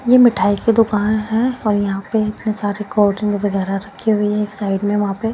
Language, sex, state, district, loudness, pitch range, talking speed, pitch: Hindi, female, Punjab, Pathankot, -17 LUFS, 200-220 Hz, 245 wpm, 210 Hz